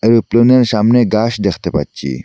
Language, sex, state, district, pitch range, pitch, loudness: Bengali, male, Assam, Hailakandi, 100-120 Hz, 115 Hz, -13 LUFS